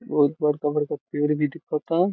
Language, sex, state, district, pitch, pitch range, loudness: Bhojpuri, male, Bihar, Saran, 150 Hz, 150-165 Hz, -24 LUFS